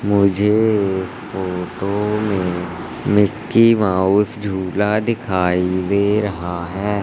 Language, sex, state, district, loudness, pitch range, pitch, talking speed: Hindi, male, Madhya Pradesh, Katni, -18 LUFS, 95-105 Hz, 100 Hz, 95 wpm